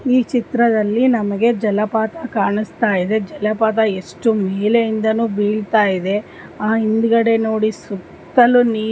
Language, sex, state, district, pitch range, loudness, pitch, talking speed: Kannada, female, Karnataka, Dharwad, 210-230 Hz, -17 LUFS, 220 Hz, 100 wpm